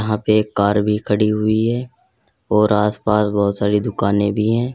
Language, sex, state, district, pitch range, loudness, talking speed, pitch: Hindi, male, Uttar Pradesh, Lalitpur, 105-110 Hz, -18 LUFS, 200 wpm, 105 Hz